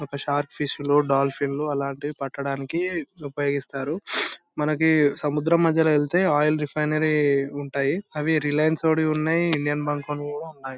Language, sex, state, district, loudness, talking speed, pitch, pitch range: Telugu, male, Andhra Pradesh, Anantapur, -24 LUFS, 145 wpm, 150 Hz, 140-160 Hz